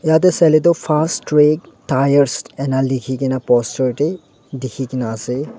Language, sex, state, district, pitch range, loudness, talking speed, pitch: Nagamese, male, Nagaland, Dimapur, 130-155 Hz, -17 LUFS, 150 wpm, 135 Hz